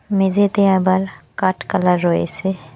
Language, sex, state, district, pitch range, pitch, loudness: Bengali, female, West Bengal, Cooch Behar, 175-195 Hz, 190 Hz, -17 LUFS